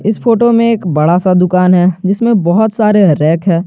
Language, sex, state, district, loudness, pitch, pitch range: Hindi, male, Jharkhand, Garhwa, -10 LUFS, 190 Hz, 175-220 Hz